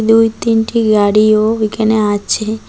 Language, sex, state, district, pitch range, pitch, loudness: Bengali, female, West Bengal, Cooch Behar, 215-225 Hz, 220 Hz, -13 LUFS